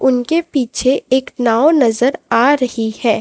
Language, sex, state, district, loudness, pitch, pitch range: Hindi, female, Chhattisgarh, Raipur, -15 LUFS, 255 Hz, 230-275 Hz